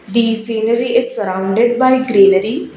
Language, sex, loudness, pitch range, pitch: English, female, -14 LUFS, 210-240 Hz, 230 Hz